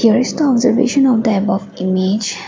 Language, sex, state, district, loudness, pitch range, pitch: English, female, Assam, Kamrup Metropolitan, -15 LUFS, 200-250 Hz, 225 Hz